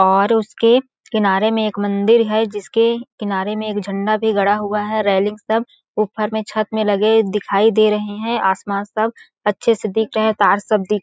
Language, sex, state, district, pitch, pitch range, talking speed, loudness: Hindi, female, Chhattisgarh, Balrampur, 215 Hz, 205-220 Hz, 200 wpm, -17 LUFS